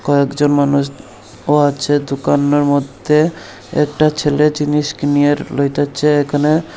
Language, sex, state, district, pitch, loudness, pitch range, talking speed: Bengali, male, Tripura, Unakoti, 145 Hz, -15 LUFS, 140-150 Hz, 105 wpm